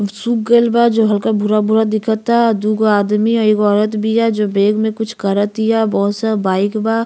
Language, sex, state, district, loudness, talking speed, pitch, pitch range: Bhojpuri, female, Uttar Pradesh, Ghazipur, -15 LUFS, 220 wpm, 215 Hz, 210-225 Hz